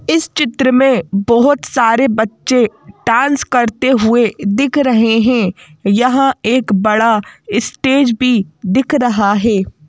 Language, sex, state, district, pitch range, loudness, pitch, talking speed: Hindi, female, Madhya Pradesh, Bhopal, 215-260 Hz, -13 LUFS, 235 Hz, 120 wpm